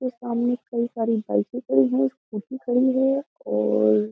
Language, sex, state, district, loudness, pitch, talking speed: Hindi, female, Uttar Pradesh, Jyotiba Phule Nagar, -23 LUFS, 225 Hz, 175 wpm